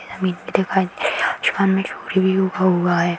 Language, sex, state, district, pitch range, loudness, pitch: Hindi, female, Uttar Pradesh, Hamirpur, 180-190 Hz, -19 LUFS, 190 Hz